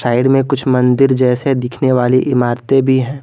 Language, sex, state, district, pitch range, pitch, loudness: Hindi, male, Jharkhand, Garhwa, 125-135 Hz, 130 Hz, -13 LUFS